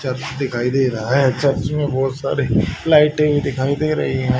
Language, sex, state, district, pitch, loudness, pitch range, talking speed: Hindi, male, Haryana, Charkhi Dadri, 135 Hz, -18 LUFS, 130-145 Hz, 190 wpm